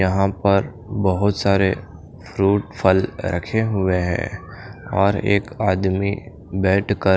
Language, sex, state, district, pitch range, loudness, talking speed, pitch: Hindi, male, Chandigarh, Chandigarh, 95-105 Hz, -20 LUFS, 110 wpm, 100 Hz